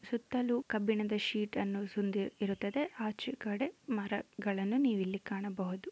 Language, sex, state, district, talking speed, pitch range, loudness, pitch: Kannada, female, Karnataka, Dakshina Kannada, 100 wpm, 200-240 Hz, -36 LUFS, 210 Hz